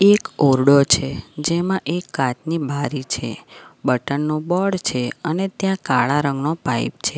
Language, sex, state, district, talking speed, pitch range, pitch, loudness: Gujarati, female, Gujarat, Valsad, 150 wpm, 135-175 Hz, 145 Hz, -20 LUFS